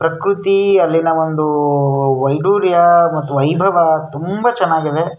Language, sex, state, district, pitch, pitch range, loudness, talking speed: Kannada, male, Karnataka, Shimoga, 165 Hz, 150-185 Hz, -14 LUFS, 105 wpm